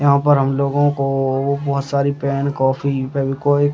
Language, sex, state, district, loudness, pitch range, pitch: Hindi, male, Bihar, Muzaffarpur, -18 LUFS, 135-140 Hz, 140 Hz